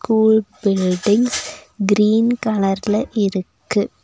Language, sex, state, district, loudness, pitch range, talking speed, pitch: Tamil, female, Tamil Nadu, Nilgiris, -18 LUFS, 200-220 Hz, 75 wpm, 210 Hz